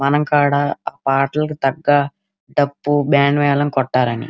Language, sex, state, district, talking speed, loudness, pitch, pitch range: Telugu, female, Andhra Pradesh, Krishna, 125 wpm, -17 LUFS, 145 Hz, 140-145 Hz